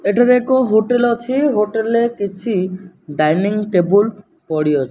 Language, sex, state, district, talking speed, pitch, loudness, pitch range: Odia, male, Odisha, Nuapada, 120 wpm, 210 Hz, -16 LUFS, 185-235 Hz